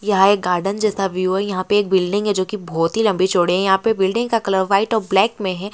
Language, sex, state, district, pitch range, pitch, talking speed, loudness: Hindi, female, West Bengal, Purulia, 185-210 Hz, 195 Hz, 260 wpm, -18 LUFS